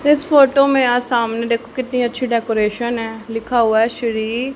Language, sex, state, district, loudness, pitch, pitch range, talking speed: Hindi, female, Haryana, Charkhi Dadri, -17 LUFS, 235 Hz, 225-255 Hz, 185 wpm